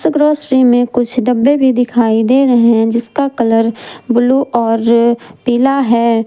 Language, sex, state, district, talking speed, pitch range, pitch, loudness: Hindi, female, Jharkhand, Ranchi, 145 wpm, 235-260 Hz, 240 Hz, -12 LUFS